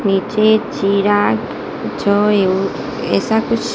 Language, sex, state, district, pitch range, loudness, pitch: Hindi, female, Gujarat, Gandhinagar, 200-220 Hz, -16 LUFS, 205 Hz